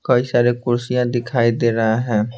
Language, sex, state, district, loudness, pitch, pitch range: Hindi, male, Bihar, Patna, -18 LUFS, 120 Hz, 115-125 Hz